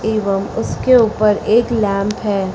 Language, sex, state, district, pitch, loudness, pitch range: Hindi, female, Uttar Pradesh, Lucknow, 210 Hz, -16 LUFS, 200-220 Hz